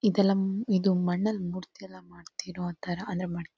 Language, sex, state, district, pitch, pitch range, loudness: Kannada, female, Karnataka, Dakshina Kannada, 185 Hz, 175-195 Hz, -29 LUFS